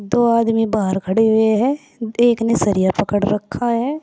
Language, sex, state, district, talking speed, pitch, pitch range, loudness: Hindi, female, Uttar Pradesh, Saharanpur, 180 wpm, 225 Hz, 205-240 Hz, -17 LUFS